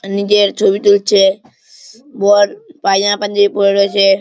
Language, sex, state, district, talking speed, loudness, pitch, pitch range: Bengali, male, West Bengal, Malda, 115 wpm, -12 LUFS, 205 Hz, 200-210 Hz